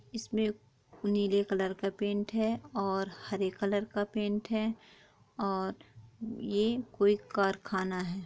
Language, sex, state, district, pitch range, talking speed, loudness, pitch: Hindi, female, Chhattisgarh, Korba, 195-220 Hz, 125 wpm, -33 LUFS, 205 Hz